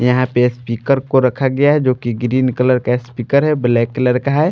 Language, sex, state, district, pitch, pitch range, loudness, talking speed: Hindi, male, Maharashtra, Washim, 125 Hz, 120-135 Hz, -15 LUFS, 240 wpm